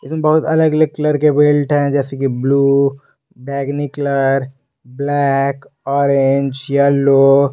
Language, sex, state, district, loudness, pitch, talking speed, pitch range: Hindi, male, Jharkhand, Garhwa, -15 LUFS, 140 Hz, 135 wpm, 135-145 Hz